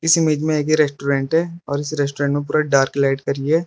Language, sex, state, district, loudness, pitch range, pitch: Hindi, male, Arunachal Pradesh, Lower Dibang Valley, -19 LUFS, 140-155 Hz, 145 Hz